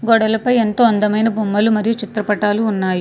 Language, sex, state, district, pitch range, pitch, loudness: Telugu, female, Telangana, Hyderabad, 210-225 Hz, 215 Hz, -16 LUFS